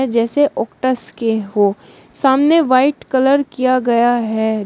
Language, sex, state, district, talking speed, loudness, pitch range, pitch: Hindi, female, Uttar Pradesh, Shamli, 130 wpm, -15 LUFS, 225-265 Hz, 255 Hz